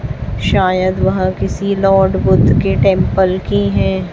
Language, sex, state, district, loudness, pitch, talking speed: Hindi, female, Chhattisgarh, Raipur, -14 LUFS, 185 Hz, 130 wpm